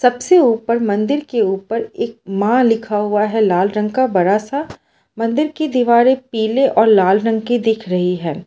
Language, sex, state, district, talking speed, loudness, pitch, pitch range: Hindi, female, Gujarat, Valsad, 185 wpm, -16 LUFS, 225 Hz, 205-245 Hz